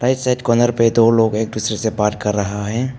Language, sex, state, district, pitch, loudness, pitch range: Hindi, male, Arunachal Pradesh, Papum Pare, 110 Hz, -17 LUFS, 105-120 Hz